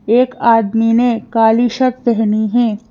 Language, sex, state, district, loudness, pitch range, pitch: Hindi, female, Madhya Pradesh, Bhopal, -14 LUFS, 225-240 Hz, 230 Hz